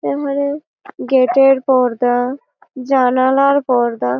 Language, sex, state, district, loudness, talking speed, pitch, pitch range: Bengali, female, West Bengal, Malda, -15 LUFS, 85 wpm, 260 Hz, 245-275 Hz